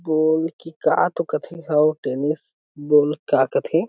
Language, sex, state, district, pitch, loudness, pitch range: Chhattisgarhi, male, Chhattisgarh, Sarguja, 155 Hz, -21 LUFS, 150-165 Hz